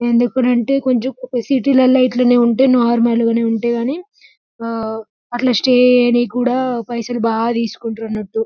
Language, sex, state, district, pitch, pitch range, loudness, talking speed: Telugu, female, Telangana, Karimnagar, 240 Hz, 230-255 Hz, -15 LUFS, 100 wpm